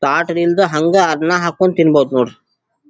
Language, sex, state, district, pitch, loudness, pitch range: Kannada, male, Karnataka, Dharwad, 170 Hz, -14 LUFS, 150-180 Hz